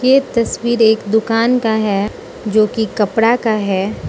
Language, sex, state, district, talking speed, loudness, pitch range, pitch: Hindi, female, Mizoram, Aizawl, 160 wpm, -15 LUFS, 210-235 Hz, 220 Hz